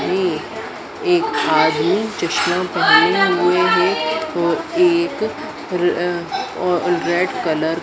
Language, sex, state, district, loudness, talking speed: Hindi, female, Madhya Pradesh, Dhar, -17 LUFS, 115 wpm